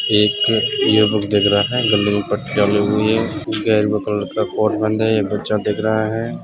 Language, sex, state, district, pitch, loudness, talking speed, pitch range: Hindi, male, Uttar Pradesh, Etah, 105 Hz, -17 LUFS, 150 wpm, 105-110 Hz